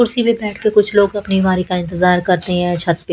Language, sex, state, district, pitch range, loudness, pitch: Hindi, female, Haryana, Jhajjar, 180-210 Hz, -15 LUFS, 185 Hz